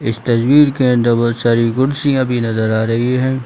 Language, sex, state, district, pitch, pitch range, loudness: Hindi, male, Jharkhand, Sahebganj, 120 Hz, 115-130 Hz, -14 LUFS